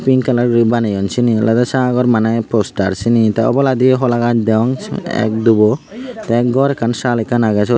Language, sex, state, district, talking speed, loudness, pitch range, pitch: Chakma, male, Tripura, Unakoti, 170 wpm, -14 LUFS, 110-125 Hz, 120 Hz